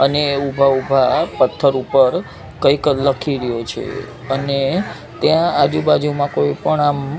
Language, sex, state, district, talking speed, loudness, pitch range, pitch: Gujarati, male, Gujarat, Gandhinagar, 140 wpm, -17 LUFS, 135-145 Hz, 140 Hz